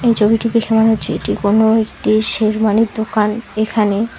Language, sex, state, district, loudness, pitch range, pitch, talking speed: Bengali, female, West Bengal, Alipurduar, -15 LUFS, 215-225 Hz, 220 Hz, 160 wpm